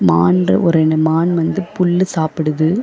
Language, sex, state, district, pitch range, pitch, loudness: Tamil, female, Tamil Nadu, Chennai, 155-175 Hz, 160 Hz, -15 LUFS